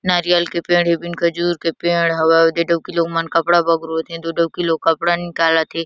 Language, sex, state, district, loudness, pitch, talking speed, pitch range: Chhattisgarhi, female, Chhattisgarh, Kabirdham, -17 LUFS, 170 Hz, 225 wpm, 165-175 Hz